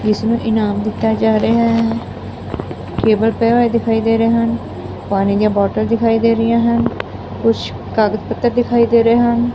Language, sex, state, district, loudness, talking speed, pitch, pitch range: Punjabi, female, Punjab, Fazilka, -15 LUFS, 170 wpm, 225 Hz, 215-230 Hz